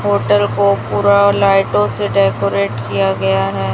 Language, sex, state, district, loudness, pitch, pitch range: Hindi, female, Chhattisgarh, Raipur, -14 LUFS, 100 Hz, 100-105 Hz